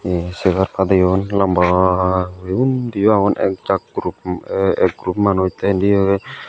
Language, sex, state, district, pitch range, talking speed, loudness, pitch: Chakma, male, Tripura, Dhalai, 90-100 Hz, 130 wpm, -17 LUFS, 95 Hz